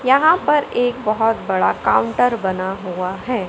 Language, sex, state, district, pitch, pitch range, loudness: Hindi, male, Madhya Pradesh, Katni, 230 Hz, 190-250 Hz, -18 LUFS